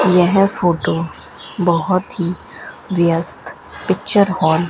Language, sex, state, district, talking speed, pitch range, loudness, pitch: Hindi, female, Rajasthan, Bikaner, 100 wpm, 170-190 Hz, -17 LUFS, 175 Hz